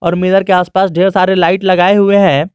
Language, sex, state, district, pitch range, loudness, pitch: Hindi, male, Jharkhand, Garhwa, 180-195 Hz, -10 LUFS, 185 Hz